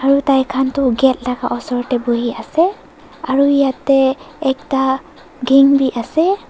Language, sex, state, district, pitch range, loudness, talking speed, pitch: Nagamese, female, Nagaland, Dimapur, 255-280 Hz, -16 LUFS, 150 wpm, 265 Hz